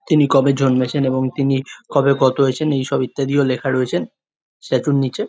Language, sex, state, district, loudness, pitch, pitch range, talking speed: Bengali, male, West Bengal, Jhargram, -18 LUFS, 135 Hz, 130-140 Hz, 180 wpm